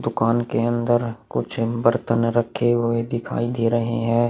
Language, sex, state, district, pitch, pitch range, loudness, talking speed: Hindi, male, Chhattisgarh, Korba, 115 Hz, 115-120 Hz, -22 LUFS, 155 wpm